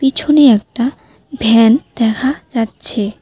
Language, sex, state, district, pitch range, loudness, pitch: Bengali, female, West Bengal, Alipurduar, 225-270 Hz, -13 LUFS, 240 Hz